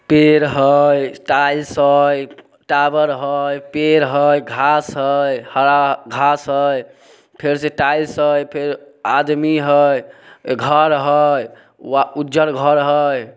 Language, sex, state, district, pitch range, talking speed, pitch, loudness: Maithili, male, Bihar, Samastipur, 140-150 Hz, 110 wpm, 145 Hz, -15 LUFS